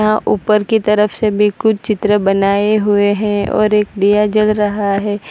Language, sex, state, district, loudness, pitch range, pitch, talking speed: Hindi, female, Gujarat, Valsad, -14 LUFS, 205-215 Hz, 210 Hz, 190 wpm